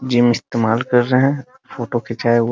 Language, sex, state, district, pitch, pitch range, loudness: Hindi, male, Bihar, Muzaffarpur, 120 Hz, 115-125 Hz, -17 LUFS